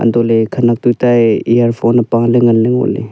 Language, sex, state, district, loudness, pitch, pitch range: Wancho, male, Arunachal Pradesh, Longding, -12 LUFS, 120 Hz, 115-120 Hz